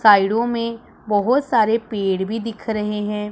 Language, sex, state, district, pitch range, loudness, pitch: Hindi, female, Punjab, Pathankot, 210-230 Hz, -20 LUFS, 220 Hz